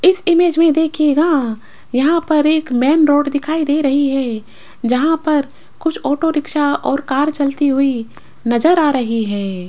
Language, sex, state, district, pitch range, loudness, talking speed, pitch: Hindi, female, Rajasthan, Jaipur, 265-315 Hz, -15 LUFS, 160 wpm, 290 Hz